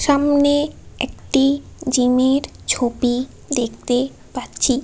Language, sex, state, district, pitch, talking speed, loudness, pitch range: Bengali, female, West Bengal, Paschim Medinipur, 270 Hz, 85 wpm, -19 LUFS, 250-285 Hz